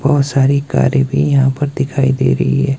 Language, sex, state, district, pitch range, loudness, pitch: Hindi, male, Himachal Pradesh, Shimla, 135-140 Hz, -14 LUFS, 135 Hz